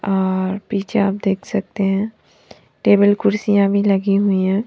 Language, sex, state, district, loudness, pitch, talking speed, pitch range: Hindi, female, Bihar, Patna, -18 LUFS, 200 Hz, 155 wpm, 195-205 Hz